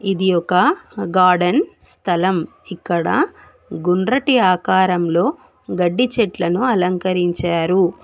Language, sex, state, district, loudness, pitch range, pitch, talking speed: Telugu, female, Telangana, Hyderabad, -17 LUFS, 175-225 Hz, 185 Hz, 75 wpm